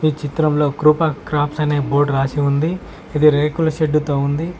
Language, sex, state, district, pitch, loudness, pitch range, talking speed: Telugu, male, Telangana, Mahabubabad, 150 Hz, -17 LUFS, 145-155 Hz, 170 wpm